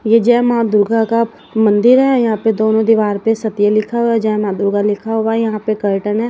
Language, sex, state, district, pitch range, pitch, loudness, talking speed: Hindi, female, Odisha, Nuapada, 210-230 Hz, 220 Hz, -14 LUFS, 230 wpm